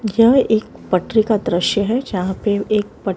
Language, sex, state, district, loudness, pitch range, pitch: Hindi, female, Maharashtra, Mumbai Suburban, -17 LUFS, 195-225 Hz, 215 Hz